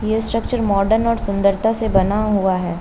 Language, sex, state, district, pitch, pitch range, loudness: Hindi, female, Uttar Pradesh, Lucknow, 215 Hz, 195-225 Hz, -17 LUFS